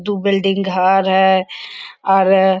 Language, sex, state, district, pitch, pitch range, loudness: Hindi, female, Jharkhand, Sahebganj, 190 Hz, 190-195 Hz, -15 LUFS